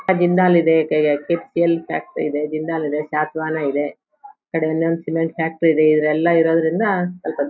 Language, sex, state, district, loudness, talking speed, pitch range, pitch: Kannada, female, Karnataka, Bellary, -19 LUFS, 145 wpm, 155-170 Hz, 160 Hz